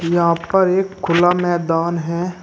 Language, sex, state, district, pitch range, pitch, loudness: Hindi, male, Uttar Pradesh, Shamli, 170-180 Hz, 175 Hz, -17 LUFS